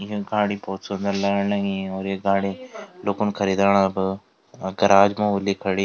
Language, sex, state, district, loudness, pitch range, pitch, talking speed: Garhwali, male, Uttarakhand, Tehri Garhwal, -22 LUFS, 95-100 Hz, 100 Hz, 175 wpm